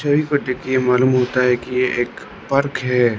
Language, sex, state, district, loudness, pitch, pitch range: Hindi, male, Arunachal Pradesh, Lower Dibang Valley, -18 LUFS, 125 Hz, 125-135 Hz